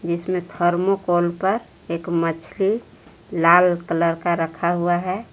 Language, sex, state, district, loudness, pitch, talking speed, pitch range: Hindi, female, Jharkhand, Palamu, -21 LUFS, 175 Hz, 135 wpm, 170-185 Hz